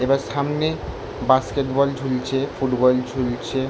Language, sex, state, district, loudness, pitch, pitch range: Bengali, male, West Bengal, Jalpaiguri, -22 LUFS, 130 Hz, 125-140 Hz